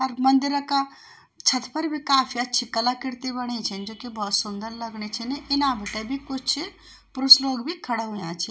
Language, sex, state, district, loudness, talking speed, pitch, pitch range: Garhwali, female, Uttarakhand, Tehri Garhwal, -23 LUFS, 190 wpm, 255 Hz, 225-275 Hz